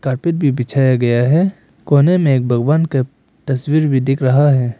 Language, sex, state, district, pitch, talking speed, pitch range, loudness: Hindi, male, Arunachal Pradesh, Papum Pare, 135 Hz, 190 wpm, 130-150 Hz, -15 LUFS